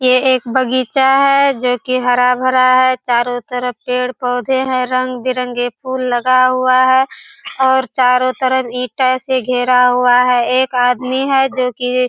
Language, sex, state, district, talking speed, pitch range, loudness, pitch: Hindi, female, Bihar, Purnia, 155 wpm, 250-260 Hz, -14 LUFS, 255 Hz